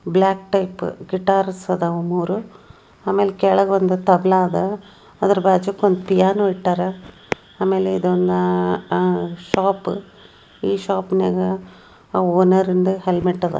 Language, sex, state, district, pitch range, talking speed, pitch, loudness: Kannada, female, Karnataka, Dharwad, 175-195 Hz, 130 wpm, 185 Hz, -19 LUFS